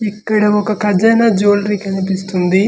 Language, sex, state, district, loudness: Telugu, male, Andhra Pradesh, Manyam, -14 LUFS